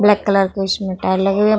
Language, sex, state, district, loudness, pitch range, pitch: Hindi, female, Bihar, Vaishali, -17 LUFS, 190-205 Hz, 195 Hz